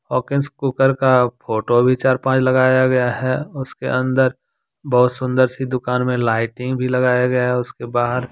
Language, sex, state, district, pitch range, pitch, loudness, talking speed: Hindi, male, Jharkhand, Deoghar, 125-130 Hz, 125 Hz, -18 LUFS, 175 wpm